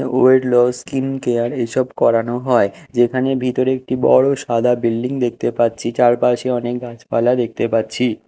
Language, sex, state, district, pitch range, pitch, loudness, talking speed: Bengali, male, Odisha, Khordha, 120-130 Hz, 125 Hz, -17 LUFS, 140 wpm